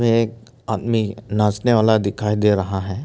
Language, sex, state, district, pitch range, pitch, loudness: Hindi, male, Arunachal Pradesh, Papum Pare, 105-115 Hz, 110 Hz, -19 LUFS